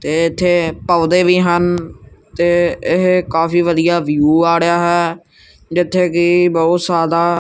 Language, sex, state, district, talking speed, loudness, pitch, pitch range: Punjabi, male, Punjab, Kapurthala, 145 wpm, -14 LUFS, 170 Hz, 165-175 Hz